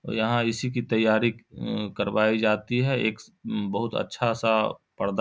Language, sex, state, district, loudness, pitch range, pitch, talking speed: Maithili, male, Bihar, Samastipur, -26 LUFS, 110-120 Hz, 110 Hz, 150 wpm